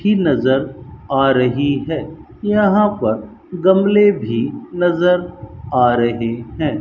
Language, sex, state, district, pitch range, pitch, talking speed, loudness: Hindi, male, Rajasthan, Bikaner, 125-185 Hz, 140 Hz, 115 wpm, -16 LUFS